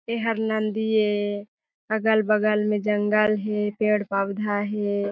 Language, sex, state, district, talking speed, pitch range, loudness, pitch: Chhattisgarhi, female, Chhattisgarh, Jashpur, 130 wpm, 205-220 Hz, -23 LUFS, 210 Hz